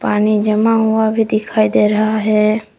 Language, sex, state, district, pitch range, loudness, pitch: Hindi, female, Jharkhand, Palamu, 215-220 Hz, -14 LUFS, 215 Hz